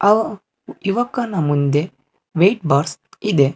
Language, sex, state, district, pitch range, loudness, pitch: Kannada, male, Karnataka, Bangalore, 145-215 Hz, -19 LUFS, 180 Hz